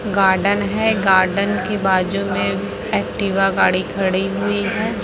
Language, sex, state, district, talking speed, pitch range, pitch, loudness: Hindi, female, Chhattisgarh, Raipur, 130 wpm, 185-205 Hz, 195 Hz, -18 LUFS